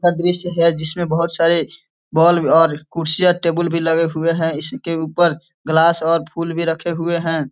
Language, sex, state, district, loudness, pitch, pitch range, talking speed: Hindi, male, Bihar, East Champaran, -17 LUFS, 165 Hz, 160-170 Hz, 185 wpm